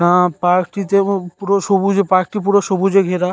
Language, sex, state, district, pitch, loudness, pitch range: Bengali, male, West Bengal, North 24 Parganas, 195 Hz, -16 LUFS, 180-200 Hz